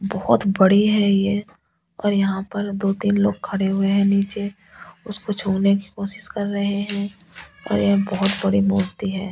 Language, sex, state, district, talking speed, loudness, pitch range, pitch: Hindi, female, Delhi, New Delhi, 175 wpm, -20 LUFS, 195-205 Hz, 200 Hz